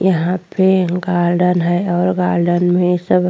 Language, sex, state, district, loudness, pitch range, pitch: Hindi, female, Goa, North and South Goa, -15 LUFS, 175-180 Hz, 180 Hz